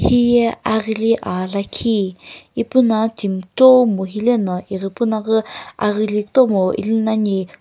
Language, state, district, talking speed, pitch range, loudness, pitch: Sumi, Nagaland, Kohima, 110 wpm, 195-230 Hz, -17 LUFS, 220 Hz